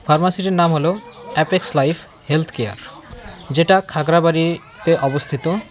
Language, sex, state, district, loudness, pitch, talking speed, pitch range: Bengali, male, West Bengal, Cooch Behar, -18 LUFS, 165 Hz, 105 wpm, 155-175 Hz